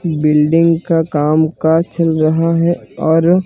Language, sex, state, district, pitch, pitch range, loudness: Hindi, male, Gujarat, Gandhinagar, 165 Hz, 155-165 Hz, -14 LUFS